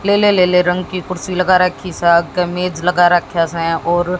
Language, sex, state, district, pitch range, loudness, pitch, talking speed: Hindi, female, Haryana, Jhajjar, 170-185 Hz, -15 LUFS, 180 Hz, 185 wpm